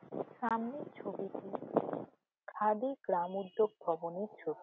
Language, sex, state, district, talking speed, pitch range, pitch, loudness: Bengali, female, West Bengal, Jhargram, 80 wpm, 180-230 Hz, 215 Hz, -37 LUFS